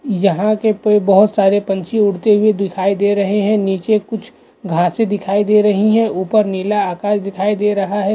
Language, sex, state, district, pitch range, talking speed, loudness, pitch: Hindi, male, Uttar Pradesh, Hamirpur, 195-215 Hz, 175 wpm, -15 LUFS, 205 Hz